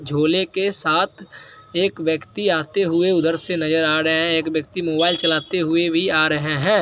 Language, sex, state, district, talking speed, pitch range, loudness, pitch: Hindi, male, Bihar, Araria, 200 wpm, 155-180 Hz, -19 LUFS, 165 Hz